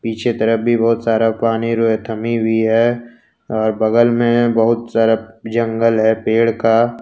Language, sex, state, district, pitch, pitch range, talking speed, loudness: Hindi, male, Jharkhand, Ranchi, 115 Hz, 110-115 Hz, 170 wpm, -16 LUFS